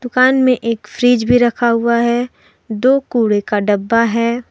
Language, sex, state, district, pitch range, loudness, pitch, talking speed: Hindi, female, Jharkhand, Deoghar, 230-245 Hz, -14 LUFS, 235 Hz, 175 wpm